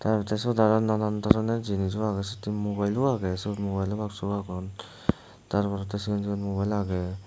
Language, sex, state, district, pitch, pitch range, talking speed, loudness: Chakma, male, Tripura, Dhalai, 100 Hz, 100-105 Hz, 180 wpm, -28 LUFS